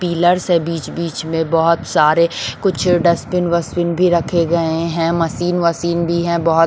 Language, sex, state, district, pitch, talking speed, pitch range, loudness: Hindi, female, Bihar, Patna, 170 Hz, 170 wpm, 165-175 Hz, -16 LUFS